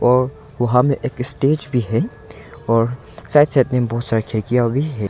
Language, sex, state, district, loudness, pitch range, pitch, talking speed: Hindi, male, Arunachal Pradesh, Longding, -18 LUFS, 115-140 Hz, 125 Hz, 190 wpm